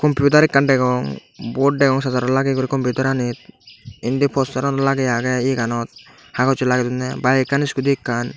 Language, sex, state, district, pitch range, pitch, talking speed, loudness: Chakma, male, Tripura, Dhalai, 125-135 Hz, 130 Hz, 150 wpm, -18 LUFS